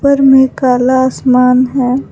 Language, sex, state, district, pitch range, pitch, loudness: Hindi, female, Jharkhand, Palamu, 250-265 Hz, 260 Hz, -10 LUFS